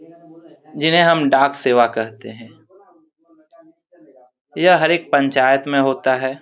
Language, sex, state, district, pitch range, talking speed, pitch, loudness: Hindi, male, Jharkhand, Jamtara, 130-170 Hz, 120 wpm, 140 Hz, -16 LUFS